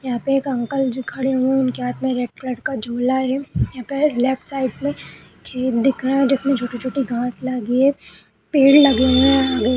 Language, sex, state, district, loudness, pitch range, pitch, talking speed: Hindi, female, Uttar Pradesh, Budaun, -19 LUFS, 250-270 Hz, 260 Hz, 215 wpm